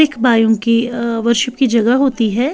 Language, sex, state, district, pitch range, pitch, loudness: Hindi, female, Bihar, Patna, 230-255 Hz, 235 Hz, -14 LUFS